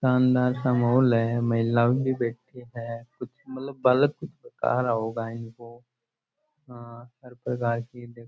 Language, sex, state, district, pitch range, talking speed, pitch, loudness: Rajasthani, male, Rajasthan, Churu, 115-130 Hz, 145 wpm, 120 Hz, -25 LUFS